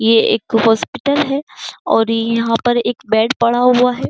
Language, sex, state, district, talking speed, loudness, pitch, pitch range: Hindi, female, Uttar Pradesh, Jyotiba Phule Nagar, 175 wpm, -15 LUFS, 235 Hz, 225-250 Hz